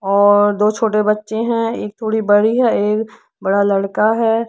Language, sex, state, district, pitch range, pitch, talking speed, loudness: Hindi, female, Uttar Pradesh, Lucknow, 205-225 Hz, 215 Hz, 175 wpm, -16 LUFS